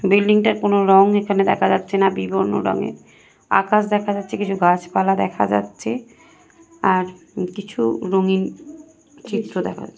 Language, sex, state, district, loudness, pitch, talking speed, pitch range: Bengali, female, West Bengal, North 24 Parganas, -19 LUFS, 195 Hz, 130 wpm, 185-205 Hz